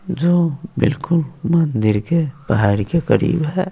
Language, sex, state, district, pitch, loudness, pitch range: Hindi, female, Bihar, West Champaran, 165 Hz, -18 LUFS, 125-170 Hz